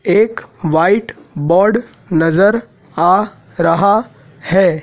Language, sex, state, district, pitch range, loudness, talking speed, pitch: Hindi, male, Madhya Pradesh, Dhar, 160-205 Hz, -14 LUFS, 85 wpm, 180 Hz